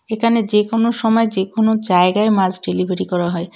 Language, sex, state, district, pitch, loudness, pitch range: Bengali, female, West Bengal, Cooch Behar, 210 Hz, -16 LUFS, 185-225 Hz